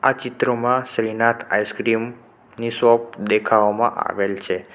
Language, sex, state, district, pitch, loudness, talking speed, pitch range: Gujarati, male, Gujarat, Navsari, 115 Hz, -20 LUFS, 90 wpm, 110-120 Hz